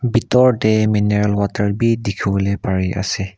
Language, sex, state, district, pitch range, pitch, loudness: Nagamese, male, Nagaland, Kohima, 100-115 Hz, 105 Hz, -17 LUFS